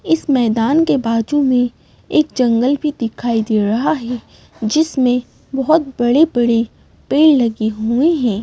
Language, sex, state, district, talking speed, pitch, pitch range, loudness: Hindi, female, Madhya Pradesh, Bhopal, 135 wpm, 250 Hz, 230-295 Hz, -16 LUFS